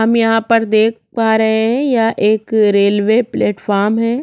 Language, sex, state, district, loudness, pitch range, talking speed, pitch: Hindi, female, Chhattisgarh, Korba, -14 LUFS, 215-230 Hz, 170 wpm, 220 Hz